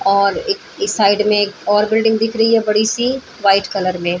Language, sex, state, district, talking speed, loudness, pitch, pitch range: Hindi, female, Bihar, Saran, 230 wpm, -16 LUFS, 210 Hz, 200-225 Hz